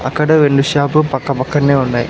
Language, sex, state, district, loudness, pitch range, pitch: Telugu, male, Andhra Pradesh, Sri Satya Sai, -13 LUFS, 135-150 Hz, 140 Hz